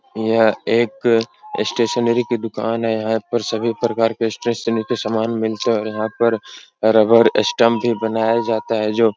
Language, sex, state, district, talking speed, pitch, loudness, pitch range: Hindi, male, Uttar Pradesh, Etah, 175 wpm, 115 Hz, -18 LUFS, 110-115 Hz